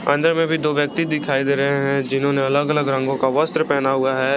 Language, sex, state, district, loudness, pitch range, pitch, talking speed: Hindi, male, Jharkhand, Garhwa, -19 LUFS, 135-150 Hz, 140 Hz, 245 wpm